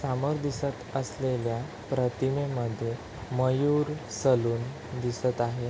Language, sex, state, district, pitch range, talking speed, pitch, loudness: Marathi, male, Maharashtra, Chandrapur, 120-135 Hz, 85 wpm, 125 Hz, -29 LUFS